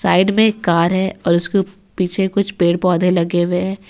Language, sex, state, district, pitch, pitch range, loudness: Hindi, female, Jharkhand, Ranchi, 185 Hz, 175-195 Hz, -16 LUFS